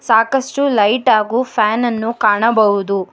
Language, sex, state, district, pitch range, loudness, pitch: Kannada, female, Karnataka, Bangalore, 210-245 Hz, -15 LUFS, 225 Hz